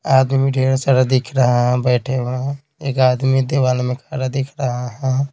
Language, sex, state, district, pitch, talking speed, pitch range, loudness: Hindi, male, Bihar, Patna, 130 Hz, 190 wpm, 125-135 Hz, -18 LUFS